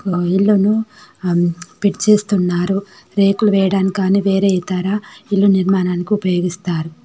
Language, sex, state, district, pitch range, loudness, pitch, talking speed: Telugu, female, Telangana, Nalgonda, 180-200 Hz, -16 LUFS, 195 Hz, 95 wpm